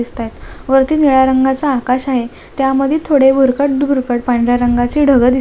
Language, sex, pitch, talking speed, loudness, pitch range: Marathi, female, 265 Hz, 155 wpm, -13 LUFS, 245-275 Hz